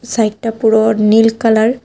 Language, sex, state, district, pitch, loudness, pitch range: Bengali, female, Tripura, West Tripura, 225 Hz, -12 LUFS, 220-230 Hz